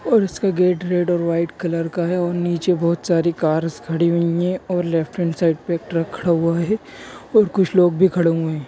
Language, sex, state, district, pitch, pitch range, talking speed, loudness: Hindi, male, Chhattisgarh, Raigarh, 170 Hz, 165-180 Hz, 235 wpm, -19 LUFS